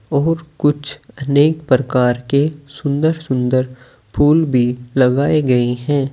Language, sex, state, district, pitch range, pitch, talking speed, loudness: Hindi, male, Uttar Pradesh, Saharanpur, 125-145 Hz, 140 Hz, 115 wpm, -16 LUFS